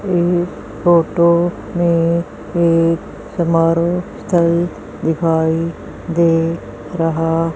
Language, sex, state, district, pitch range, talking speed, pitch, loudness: Hindi, female, Haryana, Jhajjar, 165-175 Hz, 70 wpm, 170 Hz, -16 LUFS